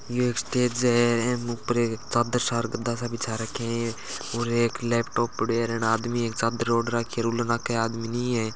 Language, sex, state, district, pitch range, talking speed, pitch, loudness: Marwari, male, Rajasthan, Churu, 115-120 Hz, 205 wpm, 115 Hz, -26 LUFS